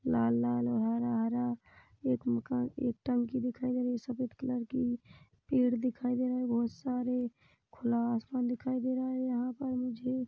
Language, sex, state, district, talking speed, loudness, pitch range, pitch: Hindi, female, Chhattisgarh, Rajnandgaon, 175 wpm, -33 LUFS, 235-255 Hz, 250 Hz